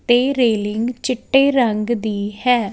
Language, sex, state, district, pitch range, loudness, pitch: Punjabi, female, Chandigarh, Chandigarh, 215-250 Hz, -18 LUFS, 240 Hz